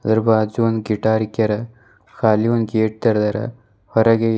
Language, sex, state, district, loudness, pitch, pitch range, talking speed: Kannada, male, Karnataka, Bidar, -18 LUFS, 110 Hz, 110-115 Hz, 135 wpm